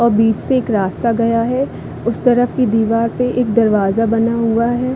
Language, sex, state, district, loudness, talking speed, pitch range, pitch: Hindi, female, Chhattisgarh, Bilaspur, -16 LUFS, 205 wpm, 225-245 Hz, 230 Hz